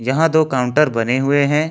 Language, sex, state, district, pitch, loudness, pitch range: Hindi, male, Jharkhand, Ranchi, 145 Hz, -16 LUFS, 125-155 Hz